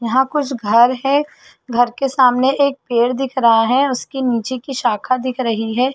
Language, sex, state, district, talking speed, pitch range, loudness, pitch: Hindi, female, Chhattisgarh, Balrampur, 190 wpm, 240-270 Hz, -16 LUFS, 255 Hz